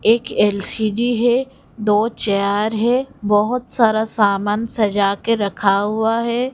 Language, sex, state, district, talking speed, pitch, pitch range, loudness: Hindi, female, Odisha, Khordha, 130 wpm, 220 Hz, 205-235 Hz, -18 LUFS